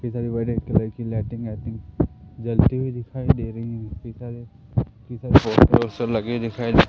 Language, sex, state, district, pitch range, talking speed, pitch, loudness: Hindi, male, Madhya Pradesh, Umaria, 115-120 Hz, 120 wpm, 115 Hz, -22 LUFS